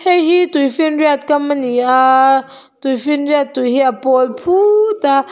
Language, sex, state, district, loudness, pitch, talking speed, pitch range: Mizo, female, Mizoram, Aizawl, -13 LUFS, 280 Hz, 135 wpm, 260-310 Hz